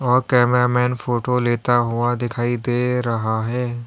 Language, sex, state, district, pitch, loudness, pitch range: Hindi, male, Uttar Pradesh, Lalitpur, 120 Hz, -19 LUFS, 120-125 Hz